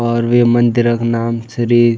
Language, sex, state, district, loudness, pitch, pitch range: Garhwali, male, Uttarakhand, Tehri Garhwal, -14 LUFS, 120 Hz, 115-120 Hz